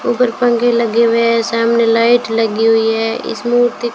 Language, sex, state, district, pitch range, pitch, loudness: Hindi, female, Rajasthan, Bikaner, 225-240 Hz, 230 Hz, -13 LUFS